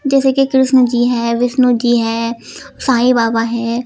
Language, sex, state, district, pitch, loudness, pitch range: Hindi, female, Uttar Pradesh, Lucknow, 240 Hz, -14 LUFS, 235-260 Hz